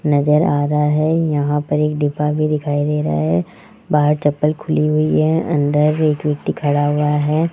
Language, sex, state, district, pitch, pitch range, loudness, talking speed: Hindi, male, Rajasthan, Jaipur, 150 Hz, 145-150 Hz, -17 LUFS, 190 wpm